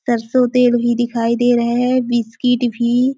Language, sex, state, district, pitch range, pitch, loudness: Hindi, female, Chhattisgarh, Sarguja, 235-250 Hz, 240 Hz, -16 LUFS